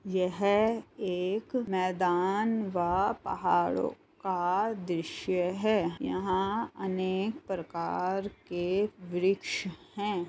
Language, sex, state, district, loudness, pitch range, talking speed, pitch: Hindi, female, Uttar Pradesh, Muzaffarnagar, -31 LUFS, 180-205 Hz, 80 wpm, 190 Hz